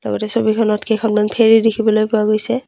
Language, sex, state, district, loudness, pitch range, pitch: Assamese, female, Assam, Kamrup Metropolitan, -15 LUFS, 215-225 Hz, 220 Hz